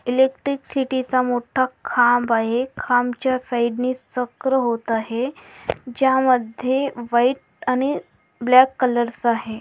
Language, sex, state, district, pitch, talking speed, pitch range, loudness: Marathi, female, Maharashtra, Pune, 250 Hz, 125 wpm, 240-265 Hz, -20 LUFS